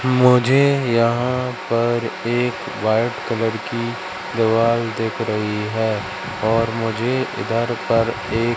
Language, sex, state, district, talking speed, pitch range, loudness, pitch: Hindi, male, Madhya Pradesh, Katni, 120 wpm, 115-120 Hz, -20 LUFS, 115 Hz